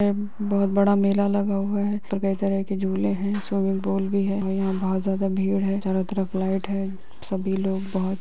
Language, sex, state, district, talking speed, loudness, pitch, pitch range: Hindi, female, Bihar, Lakhisarai, 235 wpm, -24 LUFS, 195 Hz, 195-200 Hz